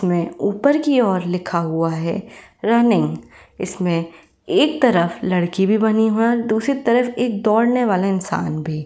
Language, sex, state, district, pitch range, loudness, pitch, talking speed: Hindi, female, Uttar Pradesh, Varanasi, 170-235 Hz, -18 LUFS, 195 Hz, 160 wpm